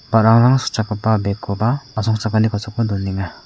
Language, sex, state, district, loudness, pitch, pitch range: Garo, male, Meghalaya, South Garo Hills, -18 LUFS, 110 Hz, 105-115 Hz